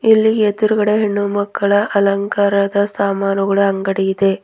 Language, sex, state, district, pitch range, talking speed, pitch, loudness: Kannada, female, Karnataka, Bidar, 195-210 Hz, 95 wpm, 200 Hz, -16 LUFS